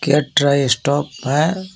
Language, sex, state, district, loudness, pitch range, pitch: Hindi, male, Jharkhand, Garhwa, -17 LUFS, 140-150 Hz, 145 Hz